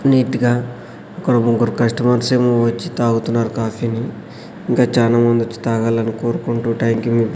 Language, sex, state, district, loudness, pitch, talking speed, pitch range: Telugu, male, Andhra Pradesh, Sri Satya Sai, -17 LUFS, 115 Hz, 170 wpm, 115-120 Hz